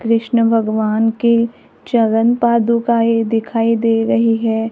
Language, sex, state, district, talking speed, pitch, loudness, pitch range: Hindi, female, Maharashtra, Gondia, 125 wpm, 230 Hz, -15 LUFS, 225-235 Hz